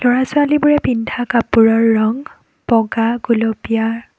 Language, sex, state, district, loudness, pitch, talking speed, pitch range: Assamese, female, Assam, Kamrup Metropolitan, -15 LUFS, 230 Hz, 100 wpm, 225-250 Hz